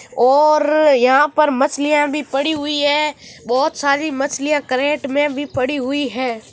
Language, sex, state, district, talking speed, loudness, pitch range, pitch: Marwari, female, Rajasthan, Nagaur, 155 wpm, -16 LUFS, 270-295 Hz, 285 Hz